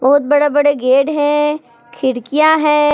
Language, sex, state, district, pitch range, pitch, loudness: Hindi, female, Jharkhand, Palamu, 265-295 Hz, 290 Hz, -13 LUFS